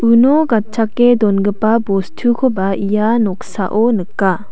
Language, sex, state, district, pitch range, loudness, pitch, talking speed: Garo, female, Meghalaya, South Garo Hills, 195-235 Hz, -14 LUFS, 215 Hz, 95 wpm